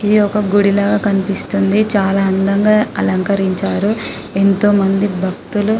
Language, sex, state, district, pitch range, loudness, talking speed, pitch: Telugu, female, Telangana, Karimnagar, 195-205 Hz, -15 LUFS, 115 wpm, 200 Hz